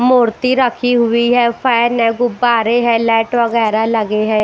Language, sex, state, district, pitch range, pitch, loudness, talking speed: Hindi, female, Haryana, Rohtak, 225-245 Hz, 235 Hz, -14 LUFS, 160 wpm